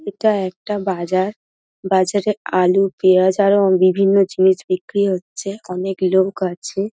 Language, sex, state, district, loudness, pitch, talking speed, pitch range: Bengali, female, West Bengal, Dakshin Dinajpur, -17 LUFS, 190 Hz, 120 wpm, 185-200 Hz